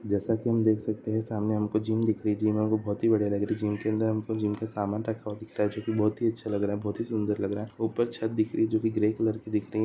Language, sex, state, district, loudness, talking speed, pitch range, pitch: Hindi, male, Maharashtra, Aurangabad, -28 LUFS, 355 wpm, 105-110 Hz, 110 Hz